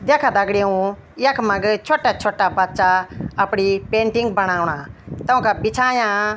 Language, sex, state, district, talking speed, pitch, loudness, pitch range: Garhwali, female, Uttarakhand, Tehri Garhwal, 105 wpm, 200 Hz, -18 LUFS, 190-230 Hz